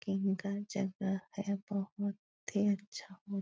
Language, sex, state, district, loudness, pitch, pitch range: Hindi, female, Bihar, Jahanabad, -37 LUFS, 200 Hz, 195-200 Hz